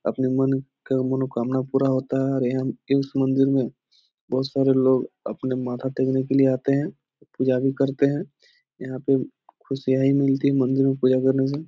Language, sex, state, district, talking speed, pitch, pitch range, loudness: Hindi, male, Bihar, Jahanabad, 195 wpm, 135 Hz, 130-135 Hz, -23 LUFS